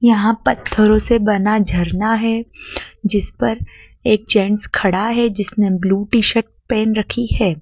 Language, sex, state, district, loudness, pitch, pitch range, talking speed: Hindi, female, Madhya Pradesh, Dhar, -16 LUFS, 215 Hz, 205-225 Hz, 140 wpm